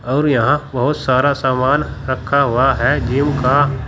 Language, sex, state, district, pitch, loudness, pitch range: Hindi, male, Uttar Pradesh, Saharanpur, 135 Hz, -16 LUFS, 130-145 Hz